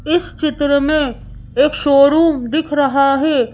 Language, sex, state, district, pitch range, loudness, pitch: Hindi, female, Madhya Pradesh, Bhopal, 275-310 Hz, -15 LUFS, 285 Hz